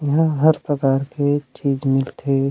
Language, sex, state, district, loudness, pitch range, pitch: Chhattisgarhi, male, Chhattisgarh, Rajnandgaon, -19 LUFS, 135-145 Hz, 140 Hz